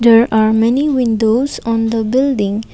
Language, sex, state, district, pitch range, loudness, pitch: English, female, Assam, Kamrup Metropolitan, 220-250 Hz, -14 LUFS, 230 Hz